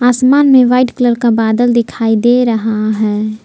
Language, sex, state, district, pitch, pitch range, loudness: Hindi, female, Jharkhand, Palamu, 235 Hz, 220-250 Hz, -11 LUFS